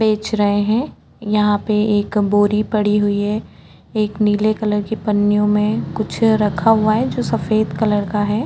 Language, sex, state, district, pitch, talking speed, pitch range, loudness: Hindi, female, Maharashtra, Chandrapur, 210 Hz, 175 wpm, 205-215 Hz, -17 LUFS